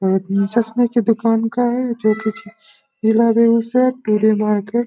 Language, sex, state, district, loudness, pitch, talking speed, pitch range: Hindi, female, Bihar, Begusarai, -17 LUFS, 230 Hz, 100 wpm, 215-240 Hz